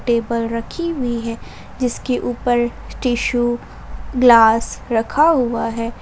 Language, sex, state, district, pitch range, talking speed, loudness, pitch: Hindi, female, Jharkhand, Ranchi, 230-250 Hz, 110 wpm, -18 LUFS, 240 Hz